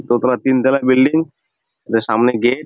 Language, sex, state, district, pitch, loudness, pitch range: Bengali, male, West Bengal, Jalpaiguri, 130 Hz, -15 LUFS, 120-135 Hz